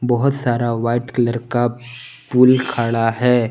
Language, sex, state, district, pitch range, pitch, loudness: Hindi, male, Jharkhand, Garhwa, 120-125 Hz, 120 Hz, -17 LUFS